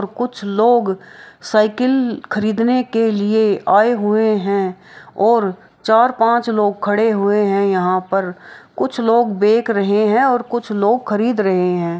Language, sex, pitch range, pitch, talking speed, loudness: Maithili, female, 200-230 Hz, 215 Hz, 150 wpm, -16 LUFS